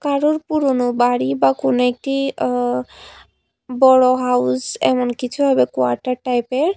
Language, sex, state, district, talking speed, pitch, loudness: Bengali, female, Tripura, West Tripura, 125 wpm, 250 Hz, -17 LUFS